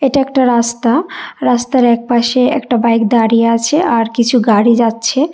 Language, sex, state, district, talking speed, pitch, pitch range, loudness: Bengali, female, Karnataka, Bangalore, 145 wpm, 240 Hz, 230-270 Hz, -12 LUFS